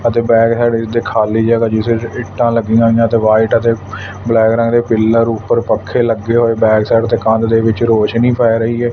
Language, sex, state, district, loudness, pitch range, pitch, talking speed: Punjabi, male, Punjab, Fazilka, -13 LUFS, 110-115 Hz, 115 Hz, 220 wpm